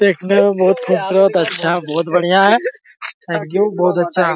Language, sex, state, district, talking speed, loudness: Hindi, male, Bihar, Araria, 180 wpm, -15 LUFS